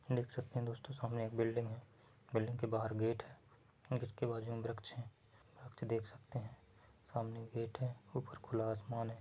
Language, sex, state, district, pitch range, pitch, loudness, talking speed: Hindi, male, Chhattisgarh, Bilaspur, 115-120 Hz, 115 Hz, -42 LUFS, 180 wpm